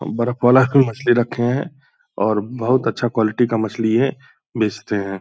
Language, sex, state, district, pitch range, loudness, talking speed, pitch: Hindi, male, Bihar, Purnia, 110-130 Hz, -18 LUFS, 185 wpm, 120 Hz